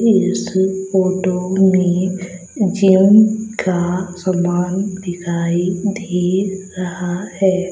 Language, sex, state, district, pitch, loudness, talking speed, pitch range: Hindi, female, Madhya Pradesh, Umaria, 185 Hz, -17 LUFS, 80 wpm, 180-195 Hz